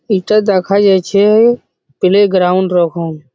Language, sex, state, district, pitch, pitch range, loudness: Bengali, male, West Bengal, Jhargram, 190 Hz, 175-205 Hz, -12 LUFS